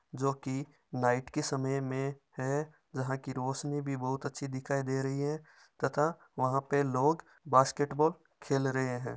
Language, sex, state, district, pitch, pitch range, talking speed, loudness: Marwari, male, Rajasthan, Nagaur, 135 Hz, 130-145 Hz, 165 wpm, -33 LUFS